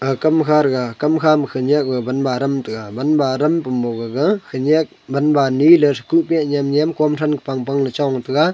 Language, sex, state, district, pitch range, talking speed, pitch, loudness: Wancho, male, Arunachal Pradesh, Longding, 130-155 Hz, 170 wpm, 140 Hz, -17 LUFS